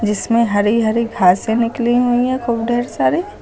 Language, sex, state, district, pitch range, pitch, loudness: Hindi, female, Uttar Pradesh, Lucknow, 220-240 Hz, 230 Hz, -16 LUFS